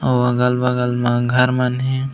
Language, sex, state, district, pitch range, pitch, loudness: Chhattisgarhi, male, Chhattisgarh, Raigarh, 125-130 Hz, 125 Hz, -17 LUFS